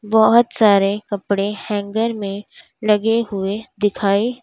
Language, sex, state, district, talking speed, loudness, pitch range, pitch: Hindi, female, Uttar Pradesh, Lalitpur, 110 wpm, -18 LUFS, 200-225 Hz, 210 Hz